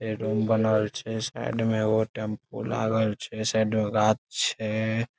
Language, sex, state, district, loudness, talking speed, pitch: Maithili, male, Bihar, Saharsa, -26 LUFS, 195 wpm, 110 Hz